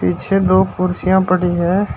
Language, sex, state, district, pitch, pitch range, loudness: Hindi, male, Uttar Pradesh, Shamli, 185 Hz, 180-190 Hz, -15 LUFS